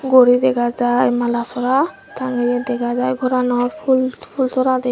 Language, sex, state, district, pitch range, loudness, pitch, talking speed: Chakma, female, Tripura, Dhalai, 245-260 Hz, -18 LUFS, 250 Hz, 145 wpm